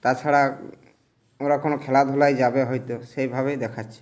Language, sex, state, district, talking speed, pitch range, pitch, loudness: Bengali, male, West Bengal, Purulia, 150 wpm, 125-140 Hz, 135 Hz, -23 LUFS